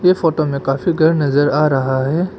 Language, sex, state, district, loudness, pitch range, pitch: Hindi, male, Arunachal Pradesh, Papum Pare, -16 LUFS, 140-165 Hz, 150 Hz